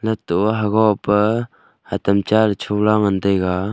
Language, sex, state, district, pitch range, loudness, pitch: Wancho, male, Arunachal Pradesh, Longding, 100-110 Hz, -18 LUFS, 105 Hz